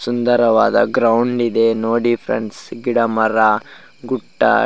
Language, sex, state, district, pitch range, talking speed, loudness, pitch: Kannada, male, Karnataka, Raichur, 110-120 Hz, 115 wpm, -16 LUFS, 115 Hz